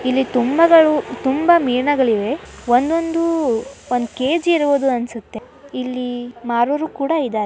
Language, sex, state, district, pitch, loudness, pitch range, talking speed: Kannada, male, Karnataka, Dharwad, 260 Hz, -18 LUFS, 245-310 Hz, 110 wpm